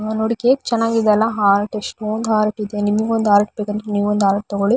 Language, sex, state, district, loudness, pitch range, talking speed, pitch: Kannada, female, Karnataka, Shimoga, -18 LUFS, 205-220 Hz, 175 wpm, 210 Hz